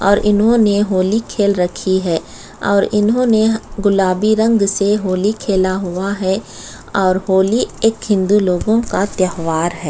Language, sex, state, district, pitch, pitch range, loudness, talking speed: Hindi, female, Chhattisgarh, Sukma, 200 Hz, 185-210 Hz, -15 LUFS, 140 wpm